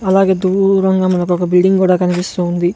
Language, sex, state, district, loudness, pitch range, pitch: Telugu, male, Andhra Pradesh, Sri Satya Sai, -13 LUFS, 180-190 Hz, 185 Hz